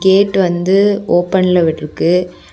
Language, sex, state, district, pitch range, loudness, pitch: Tamil, female, Tamil Nadu, Kanyakumari, 175-190 Hz, -13 LUFS, 180 Hz